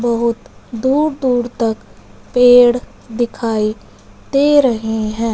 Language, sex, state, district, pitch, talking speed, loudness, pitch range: Hindi, male, Punjab, Fazilka, 240 Hz, 100 wpm, -15 LUFS, 225-255 Hz